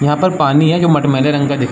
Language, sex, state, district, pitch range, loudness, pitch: Hindi, male, Uttar Pradesh, Varanasi, 140-160 Hz, -13 LUFS, 150 Hz